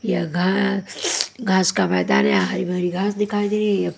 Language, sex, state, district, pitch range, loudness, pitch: Hindi, female, Haryana, Jhajjar, 180-205 Hz, -20 LUFS, 190 Hz